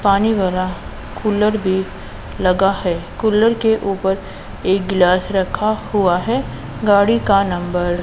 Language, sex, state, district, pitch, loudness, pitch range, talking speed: Hindi, female, Punjab, Pathankot, 195 Hz, -17 LUFS, 185-210 Hz, 135 wpm